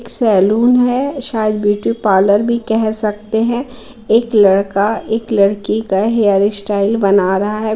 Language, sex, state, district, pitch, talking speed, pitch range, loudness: Hindi, female, Bihar, Muzaffarpur, 215 Hz, 145 wpm, 205-230 Hz, -14 LUFS